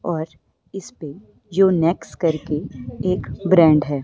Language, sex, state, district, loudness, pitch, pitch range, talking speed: Hindi, female, Himachal Pradesh, Shimla, -19 LUFS, 165 Hz, 150-185 Hz, 120 wpm